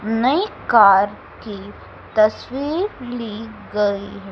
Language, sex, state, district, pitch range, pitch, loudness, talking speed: Hindi, female, Madhya Pradesh, Dhar, 205-255 Hz, 220 Hz, -19 LUFS, 85 wpm